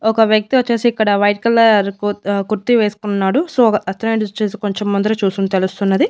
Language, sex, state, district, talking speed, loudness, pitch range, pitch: Telugu, female, Andhra Pradesh, Annamaya, 165 wpm, -16 LUFS, 200-225 Hz, 210 Hz